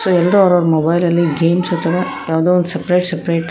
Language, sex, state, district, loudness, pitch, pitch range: Kannada, female, Karnataka, Koppal, -15 LUFS, 175 Hz, 165-180 Hz